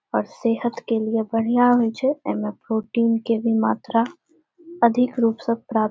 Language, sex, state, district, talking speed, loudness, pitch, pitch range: Maithili, female, Bihar, Saharsa, 170 wpm, -22 LUFS, 230 Hz, 225-245 Hz